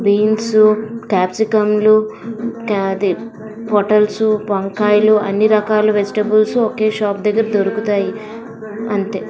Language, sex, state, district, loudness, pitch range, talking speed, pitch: Telugu, female, Andhra Pradesh, Visakhapatnam, -15 LUFS, 205-220 Hz, 85 wpm, 215 Hz